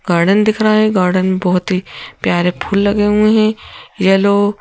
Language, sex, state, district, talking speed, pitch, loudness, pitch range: Hindi, female, Madhya Pradesh, Bhopal, 170 wpm, 200 Hz, -14 LUFS, 185-210 Hz